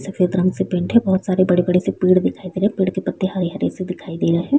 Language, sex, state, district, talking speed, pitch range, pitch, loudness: Hindi, female, Bihar, Vaishali, 300 wpm, 180-190 Hz, 185 Hz, -19 LUFS